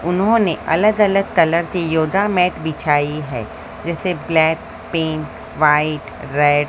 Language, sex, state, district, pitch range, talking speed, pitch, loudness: Hindi, female, Maharashtra, Mumbai Suburban, 150-180 Hz, 135 wpm, 160 Hz, -18 LUFS